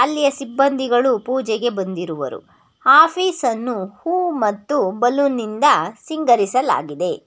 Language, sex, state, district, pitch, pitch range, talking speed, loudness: Kannada, female, Karnataka, Bangalore, 250 Hz, 215-285 Hz, 75 wpm, -18 LUFS